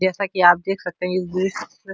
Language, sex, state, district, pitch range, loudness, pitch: Hindi, female, Uttar Pradesh, Etah, 180-195 Hz, -20 LUFS, 185 Hz